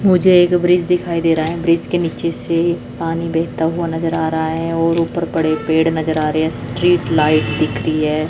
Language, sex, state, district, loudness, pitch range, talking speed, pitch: Hindi, female, Chandigarh, Chandigarh, -16 LUFS, 160-170 Hz, 225 wpm, 165 Hz